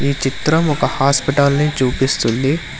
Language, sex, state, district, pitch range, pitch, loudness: Telugu, male, Telangana, Hyderabad, 135-145 Hz, 140 Hz, -16 LUFS